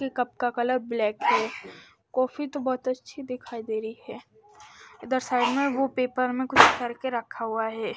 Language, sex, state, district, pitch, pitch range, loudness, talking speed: Hindi, female, Haryana, Charkhi Dadri, 250 Hz, 235-260 Hz, -26 LUFS, 180 wpm